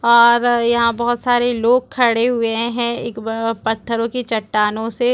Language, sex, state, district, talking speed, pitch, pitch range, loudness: Hindi, female, Chhattisgarh, Rajnandgaon, 165 wpm, 235 Hz, 230-240 Hz, -17 LUFS